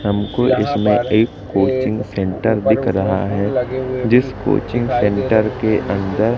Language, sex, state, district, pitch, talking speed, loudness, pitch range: Hindi, male, Madhya Pradesh, Katni, 105 Hz, 115 wpm, -17 LUFS, 100-120 Hz